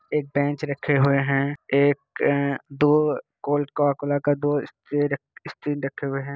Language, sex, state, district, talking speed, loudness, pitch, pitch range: Hindi, male, Bihar, Kishanganj, 160 wpm, -23 LUFS, 145 Hz, 140-145 Hz